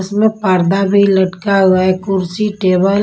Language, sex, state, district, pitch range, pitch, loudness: Hindi, female, Punjab, Kapurthala, 185-200 Hz, 195 Hz, -13 LUFS